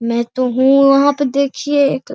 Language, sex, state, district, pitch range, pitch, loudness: Hindi, male, Bihar, Araria, 255-280 Hz, 275 Hz, -14 LUFS